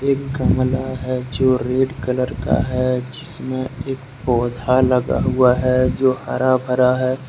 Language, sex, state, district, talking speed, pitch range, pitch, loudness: Hindi, male, Jharkhand, Deoghar, 140 wpm, 125-130 Hz, 130 Hz, -19 LUFS